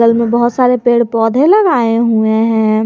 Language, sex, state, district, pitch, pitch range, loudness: Hindi, female, Jharkhand, Garhwa, 235 Hz, 225-245 Hz, -11 LUFS